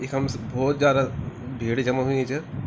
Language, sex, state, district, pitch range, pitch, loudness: Garhwali, male, Uttarakhand, Tehri Garhwal, 125-135 Hz, 130 Hz, -25 LUFS